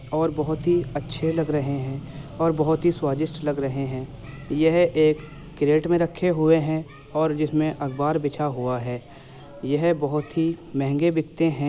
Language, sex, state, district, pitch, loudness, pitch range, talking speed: Hindi, male, Uttar Pradesh, Muzaffarnagar, 150 Hz, -24 LUFS, 140-160 Hz, 175 wpm